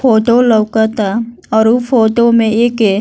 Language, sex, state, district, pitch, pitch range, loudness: Bhojpuri, female, Bihar, East Champaran, 230 Hz, 220-235 Hz, -12 LUFS